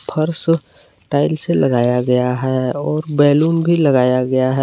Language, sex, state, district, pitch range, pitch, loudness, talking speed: Hindi, male, Jharkhand, Palamu, 125-155 Hz, 145 Hz, -16 LUFS, 155 wpm